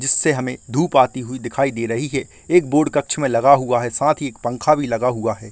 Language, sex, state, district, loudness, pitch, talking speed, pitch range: Hindi, male, Chhattisgarh, Rajnandgaon, -18 LUFS, 130 Hz, 260 wpm, 120-145 Hz